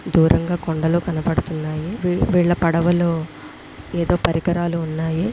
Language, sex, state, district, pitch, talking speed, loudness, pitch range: Telugu, female, Andhra Pradesh, Visakhapatnam, 170 Hz, 100 wpm, -20 LUFS, 160-175 Hz